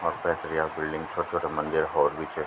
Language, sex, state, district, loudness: Garhwali, male, Uttarakhand, Tehri Garhwal, -28 LUFS